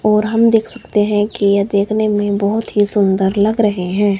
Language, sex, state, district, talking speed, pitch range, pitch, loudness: Hindi, male, Himachal Pradesh, Shimla, 215 wpm, 200-215 Hz, 205 Hz, -15 LUFS